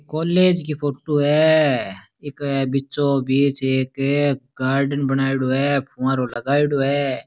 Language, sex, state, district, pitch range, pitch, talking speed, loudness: Rajasthani, male, Rajasthan, Nagaur, 135-145 Hz, 140 Hz, 115 wpm, -20 LUFS